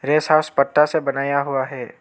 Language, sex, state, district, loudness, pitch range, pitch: Hindi, male, Arunachal Pradesh, Lower Dibang Valley, -19 LUFS, 140-155 Hz, 140 Hz